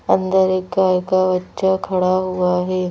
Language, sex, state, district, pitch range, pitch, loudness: Hindi, female, Madhya Pradesh, Bhopal, 180-190 Hz, 185 Hz, -18 LUFS